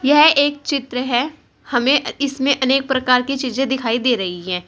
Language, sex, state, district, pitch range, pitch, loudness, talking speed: Hindi, female, Uttar Pradesh, Saharanpur, 245-280 Hz, 265 Hz, -17 LUFS, 190 wpm